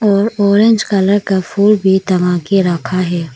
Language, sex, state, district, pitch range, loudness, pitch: Hindi, female, Arunachal Pradesh, Lower Dibang Valley, 180-205 Hz, -13 LUFS, 195 Hz